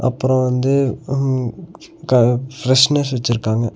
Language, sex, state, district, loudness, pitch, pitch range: Tamil, male, Tamil Nadu, Nilgiris, -17 LUFS, 130 Hz, 120-135 Hz